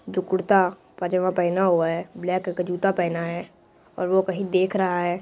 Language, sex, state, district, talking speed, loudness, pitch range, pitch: Hindi, female, Bihar, Purnia, 205 wpm, -23 LUFS, 175-190 Hz, 185 Hz